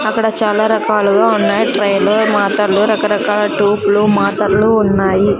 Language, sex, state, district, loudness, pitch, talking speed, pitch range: Telugu, female, Andhra Pradesh, Sri Satya Sai, -13 LUFS, 210 Hz, 120 wpm, 200-215 Hz